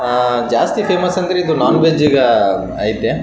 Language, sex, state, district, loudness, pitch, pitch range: Kannada, male, Karnataka, Raichur, -14 LUFS, 160 Hz, 125-180 Hz